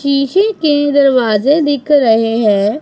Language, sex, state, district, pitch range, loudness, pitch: Hindi, female, Punjab, Pathankot, 225-290 Hz, -12 LUFS, 280 Hz